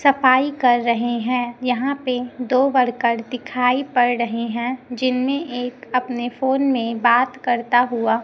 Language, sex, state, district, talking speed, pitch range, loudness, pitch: Hindi, female, Chhattisgarh, Raipur, 145 wpm, 240-255 Hz, -20 LUFS, 250 Hz